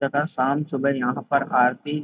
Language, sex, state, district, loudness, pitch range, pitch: Hindi, male, Uttar Pradesh, Hamirpur, -23 LUFS, 130-145 Hz, 140 Hz